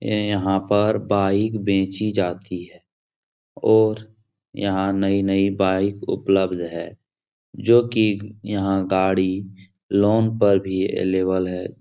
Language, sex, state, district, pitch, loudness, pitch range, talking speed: Hindi, male, Bihar, Supaul, 100 Hz, -21 LUFS, 95-105 Hz, 110 wpm